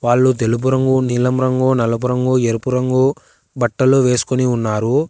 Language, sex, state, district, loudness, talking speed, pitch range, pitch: Telugu, male, Telangana, Hyderabad, -16 LUFS, 140 wpm, 120-130 Hz, 125 Hz